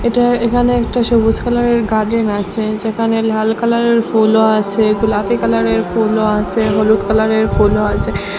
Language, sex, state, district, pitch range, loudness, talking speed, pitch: Bengali, female, Assam, Hailakandi, 215-235 Hz, -14 LUFS, 170 wpm, 220 Hz